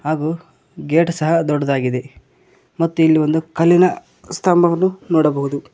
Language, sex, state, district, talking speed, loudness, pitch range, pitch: Kannada, male, Karnataka, Koppal, 105 wpm, -17 LUFS, 150-170 Hz, 160 Hz